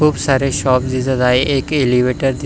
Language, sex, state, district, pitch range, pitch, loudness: Marathi, male, Maharashtra, Pune, 125-135 Hz, 130 Hz, -15 LUFS